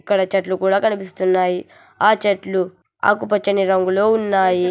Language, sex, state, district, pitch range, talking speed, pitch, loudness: Telugu, male, Telangana, Hyderabad, 185-205 Hz, 100 wpm, 190 Hz, -18 LUFS